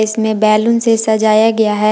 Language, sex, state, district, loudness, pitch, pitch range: Hindi, female, Jharkhand, Palamu, -12 LUFS, 220 Hz, 215-225 Hz